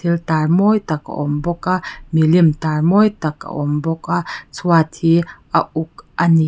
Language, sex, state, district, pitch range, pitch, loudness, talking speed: Mizo, female, Mizoram, Aizawl, 155-175 Hz, 165 Hz, -17 LUFS, 195 wpm